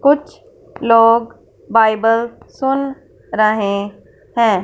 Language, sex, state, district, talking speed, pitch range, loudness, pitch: Hindi, female, Punjab, Fazilka, 80 wpm, 220-275 Hz, -16 LUFS, 230 Hz